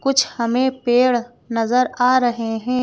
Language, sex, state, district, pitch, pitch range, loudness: Hindi, female, Madhya Pradesh, Bhopal, 245 Hz, 235-255 Hz, -18 LUFS